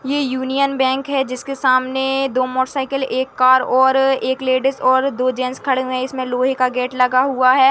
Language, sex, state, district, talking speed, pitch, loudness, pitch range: Hindi, female, Chhattisgarh, Bastar, 210 wpm, 260 Hz, -17 LUFS, 255-270 Hz